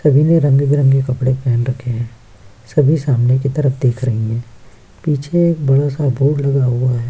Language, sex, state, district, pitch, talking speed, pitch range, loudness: Hindi, male, Bihar, Kishanganj, 135 Hz, 185 wpm, 120-145 Hz, -15 LUFS